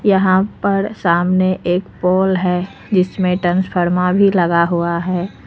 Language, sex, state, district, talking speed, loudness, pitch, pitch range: Hindi, female, Uttar Pradesh, Lucknow, 130 wpm, -16 LUFS, 185 Hz, 175-190 Hz